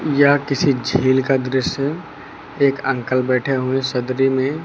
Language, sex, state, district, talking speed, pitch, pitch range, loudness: Hindi, male, Uttar Pradesh, Lucknow, 155 wpm, 135 Hz, 130-140 Hz, -18 LUFS